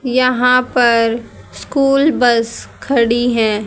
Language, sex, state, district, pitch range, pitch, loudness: Hindi, female, Haryana, Charkhi Dadri, 230-255 Hz, 245 Hz, -14 LUFS